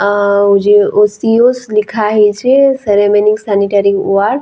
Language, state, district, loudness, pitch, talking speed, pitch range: Sambalpuri, Odisha, Sambalpur, -10 LUFS, 205 Hz, 110 wpm, 200-220 Hz